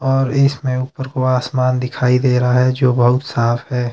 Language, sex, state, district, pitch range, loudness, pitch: Hindi, male, Himachal Pradesh, Shimla, 125-130 Hz, -16 LUFS, 130 Hz